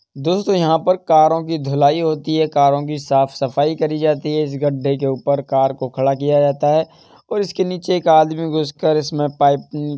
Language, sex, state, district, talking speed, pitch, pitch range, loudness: Hindi, male, Uttar Pradesh, Jalaun, 210 wpm, 150 Hz, 140-160 Hz, -17 LUFS